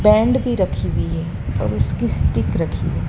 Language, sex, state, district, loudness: Hindi, female, Madhya Pradesh, Dhar, -20 LUFS